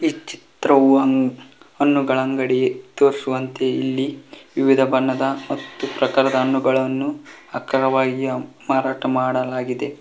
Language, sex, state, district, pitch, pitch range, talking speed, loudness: Kannada, male, Karnataka, Koppal, 135 Hz, 130-140 Hz, 90 wpm, -20 LUFS